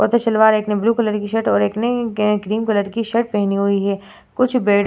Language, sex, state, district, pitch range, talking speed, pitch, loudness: Hindi, female, Bihar, Vaishali, 205-230 Hz, 260 wpm, 215 Hz, -18 LUFS